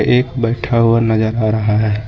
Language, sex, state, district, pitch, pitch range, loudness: Hindi, male, Jharkhand, Ranchi, 110 Hz, 110-115 Hz, -15 LUFS